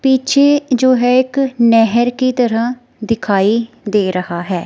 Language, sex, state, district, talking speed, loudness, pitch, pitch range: Hindi, female, Himachal Pradesh, Shimla, 140 wpm, -14 LUFS, 240 Hz, 215-255 Hz